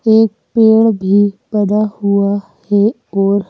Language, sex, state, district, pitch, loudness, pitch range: Hindi, female, Madhya Pradesh, Bhopal, 205 Hz, -13 LUFS, 200-220 Hz